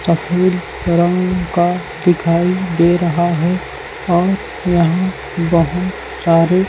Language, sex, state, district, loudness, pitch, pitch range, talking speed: Hindi, male, Chhattisgarh, Raipur, -16 LUFS, 175 Hz, 170-180 Hz, 100 wpm